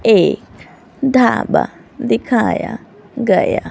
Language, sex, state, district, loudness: Hindi, female, Haryana, Rohtak, -16 LUFS